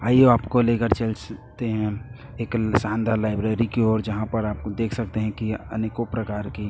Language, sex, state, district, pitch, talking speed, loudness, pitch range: Hindi, male, Chhattisgarh, Raipur, 110 Hz, 180 wpm, -24 LUFS, 105-115 Hz